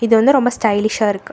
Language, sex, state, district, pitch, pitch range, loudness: Tamil, female, Karnataka, Bangalore, 225 Hz, 210-245 Hz, -15 LUFS